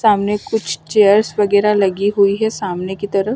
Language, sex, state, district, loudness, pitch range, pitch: Hindi, female, Delhi, New Delhi, -16 LUFS, 195-210 Hz, 205 Hz